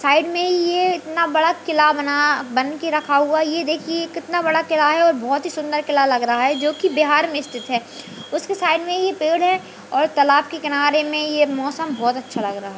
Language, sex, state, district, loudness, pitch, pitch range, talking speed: Hindi, female, Bihar, Jamui, -19 LUFS, 300 Hz, 280-330 Hz, 220 wpm